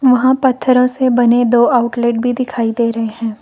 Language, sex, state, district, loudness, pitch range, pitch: Hindi, female, Arunachal Pradesh, Lower Dibang Valley, -14 LUFS, 235-255 Hz, 245 Hz